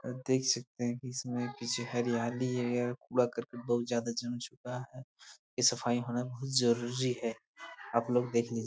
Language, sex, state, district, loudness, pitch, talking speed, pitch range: Hindi, male, Jharkhand, Jamtara, -33 LUFS, 120 Hz, 175 wpm, 120-125 Hz